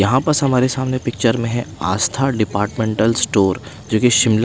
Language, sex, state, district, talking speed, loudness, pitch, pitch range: Hindi, male, Himachal Pradesh, Shimla, 175 wpm, -17 LUFS, 115 Hz, 110-130 Hz